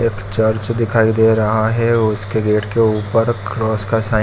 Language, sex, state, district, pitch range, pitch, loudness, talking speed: Hindi, male, Chhattisgarh, Bilaspur, 110-115 Hz, 110 Hz, -16 LUFS, 200 wpm